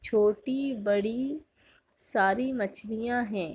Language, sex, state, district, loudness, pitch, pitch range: Hindi, female, Uttar Pradesh, Jalaun, -28 LUFS, 225 Hz, 205-260 Hz